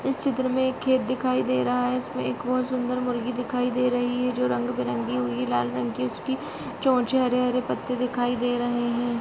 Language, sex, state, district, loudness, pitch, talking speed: Angika, female, Bihar, Madhepura, -25 LUFS, 245 Hz, 230 wpm